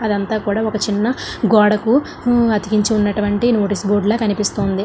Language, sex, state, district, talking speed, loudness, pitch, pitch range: Telugu, female, Andhra Pradesh, Srikakulam, 135 wpm, -17 LUFS, 210 Hz, 205-220 Hz